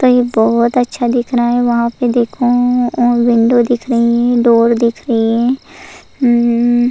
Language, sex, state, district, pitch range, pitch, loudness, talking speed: Hindi, female, Goa, North and South Goa, 235-245 Hz, 240 Hz, -13 LUFS, 175 wpm